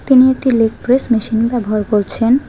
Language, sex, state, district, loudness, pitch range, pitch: Bengali, female, West Bengal, Alipurduar, -14 LUFS, 220-255 Hz, 235 Hz